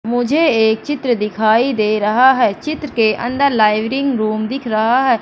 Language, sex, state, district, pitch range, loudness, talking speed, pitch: Hindi, female, Madhya Pradesh, Katni, 215-270 Hz, -15 LUFS, 185 wpm, 235 Hz